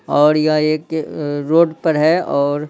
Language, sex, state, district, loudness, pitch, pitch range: Hindi, male, Bihar, Patna, -16 LUFS, 155 Hz, 150-160 Hz